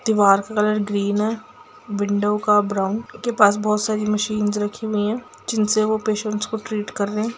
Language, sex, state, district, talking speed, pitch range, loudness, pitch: Hindi, female, Bihar, Gopalganj, 185 wpm, 205-220 Hz, -21 LUFS, 210 Hz